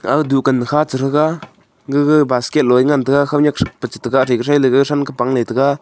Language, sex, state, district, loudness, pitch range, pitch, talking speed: Wancho, male, Arunachal Pradesh, Longding, -15 LUFS, 130-145 Hz, 140 Hz, 235 wpm